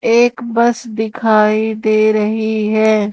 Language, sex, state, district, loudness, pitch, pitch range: Hindi, female, Madhya Pradesh, Umaria, -14 LUFS, 220 Hz, 215-230 Hz